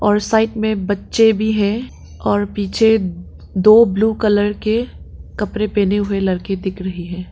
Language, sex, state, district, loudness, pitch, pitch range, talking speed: Hindi, female, Arunachal Pradesh, Papum Pare, -17 LUFS, 205 Hz, 195-220 Hz, 155 wpm